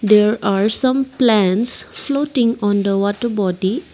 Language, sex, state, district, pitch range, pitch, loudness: English, female, Assam, Kamrup Metropolitan, 200-250 Hz, 215 Hz, -17 LUFS